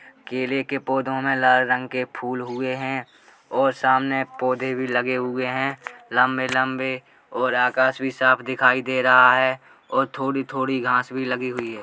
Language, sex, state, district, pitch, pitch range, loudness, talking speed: Hindi, male, Uttar Pradesh, Jalaun, 130 Hz, 125-130 Hz, -22 LUFS, 165 wpm